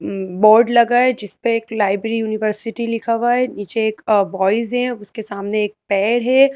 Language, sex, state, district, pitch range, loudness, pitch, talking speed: Hindi, female, Madhya Pradesh, Bhopal, 205-235 Hz, -17 LUFS, 220 Hz, 190 wpm